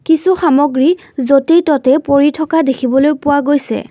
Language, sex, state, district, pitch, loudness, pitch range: Assamese, female, Assam, Kamrup Metropolitan, 290 Hz, -12 LUFS, 275-320 Hz